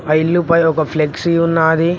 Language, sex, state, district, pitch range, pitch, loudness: Telugu, male, Telangana, Mahabubabad, 155-170 Hz, 165 Hz, -15 LUFS